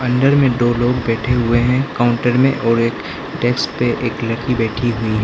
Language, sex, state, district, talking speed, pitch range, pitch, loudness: Hindi, male, Arunachal Pradesh, Lower Dibang Valley, 205 wpm, 115-125 Hz, 120 Hz, -16 LUFS